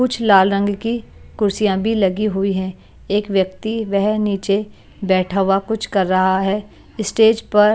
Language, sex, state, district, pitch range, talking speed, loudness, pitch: Hindi, female, Maharashtra, Washim, 195-215 Hz, 170 wpm, -18 LUFS, 205 Hz